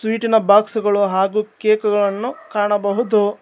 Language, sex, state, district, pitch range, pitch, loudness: Kannada, male, Karnataka, Bangalore, 205-220 Hz, 210 Hz, -17 LUFS